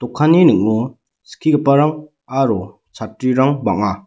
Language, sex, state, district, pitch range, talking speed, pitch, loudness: Garo, male, Meghalaya, West Garo Hills, 115-150 Hz, 75 wpm, 135 Hz, -16 LUFS